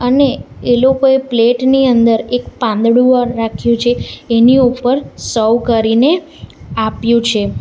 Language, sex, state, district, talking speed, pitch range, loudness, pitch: Gujarati, female, Gujarat, Valsad, 125 wpm, 230-260 Hz, -13 LUFS, 240 Hz